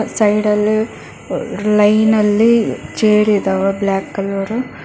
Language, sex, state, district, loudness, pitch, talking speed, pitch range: Kannada, female, Karnataka, Bangalore, -15 LUFS, 210 Hz, 85 wpm, 200-215 Hz